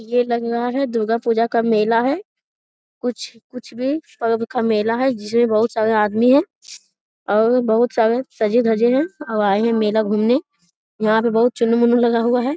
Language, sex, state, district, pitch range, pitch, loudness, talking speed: Hindi, female, Bihar, Jamui, 220-245 Hz, 230 Hz, -18 LUFS, 175 wpm